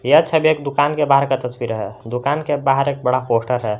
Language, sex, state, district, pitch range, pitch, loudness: Hindi, male, Jharkhand, Garhwa, 125-145 Hz, 135 Hz, -18 LUFS